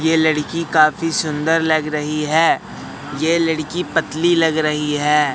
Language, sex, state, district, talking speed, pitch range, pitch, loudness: Hindi, male, Madhya Pradesh, Katni, 145 wpm, 150-165 Hz, 155 Hz, -17 LUFS